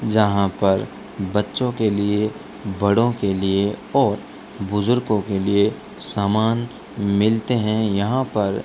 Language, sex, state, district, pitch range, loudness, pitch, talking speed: Hindi, male, Rajasthan, Bikaner, 100-110 Hz, -20 LUFS, 105 Hz, 125 wpm